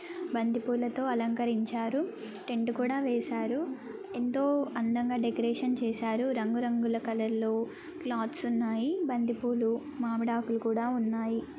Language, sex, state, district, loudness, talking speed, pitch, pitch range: Telugu, female, Andhra Pradesh, Guntur, -31 LUFS, 120 wpm, 240 Hz, 230-260 Hz